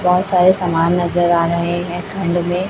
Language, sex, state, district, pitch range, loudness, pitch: Hindi, female, Chhattisgarh, Raipur, 175-180 Hz, -16 LUFS, 175 Hz